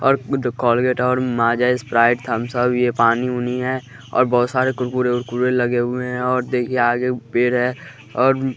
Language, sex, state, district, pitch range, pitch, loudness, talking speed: Hindi, male, Bihar, West Champaran, 120-125 Hz, 125 Hz, -19 LUFS, 180 wpm